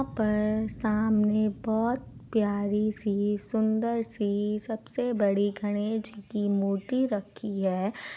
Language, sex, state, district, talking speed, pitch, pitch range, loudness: Hindi, female, Bihar, Supaul, 110 wpm, 210 Hz, 205-220 Hz, -28 LUFS